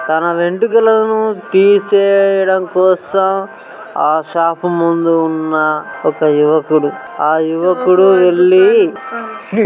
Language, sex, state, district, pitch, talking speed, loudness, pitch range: Telugu, male, Telangana, Karimnagar, 180 Hz, 85 wpm, -12 LUFS, 160-200 Hz